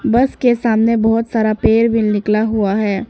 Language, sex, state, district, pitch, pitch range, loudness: Hindi, female, Arunachal Pradesh, Papum Pare, 225 Hz, 215-230 Hz, -15 LUFS